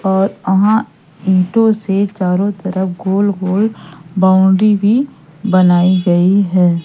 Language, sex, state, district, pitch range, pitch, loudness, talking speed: Hindi, female, Madhya Pradesh, Umaria, 185-205 Hz, 190 Hz, -13 LUFS, 115 wpm